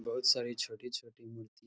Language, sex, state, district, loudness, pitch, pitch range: Hindi, male, Uttar Pradesh, Hamirpur, -34 LUFS, 120 Hz, 115-125 Hz